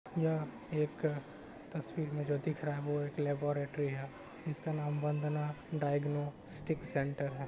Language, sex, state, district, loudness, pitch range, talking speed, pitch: Hindi, male, Bihar, Samastipur, -37 LUFS, 145-155 Hz, 150 wpm, 150 Hz